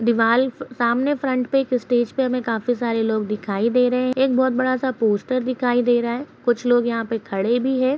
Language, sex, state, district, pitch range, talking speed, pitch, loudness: Hindi, female, Uttar Pradesh, Jyotiba Phule Nagar, 230-255 Hz, 235 wpm, 245 Hz, -21 LUFS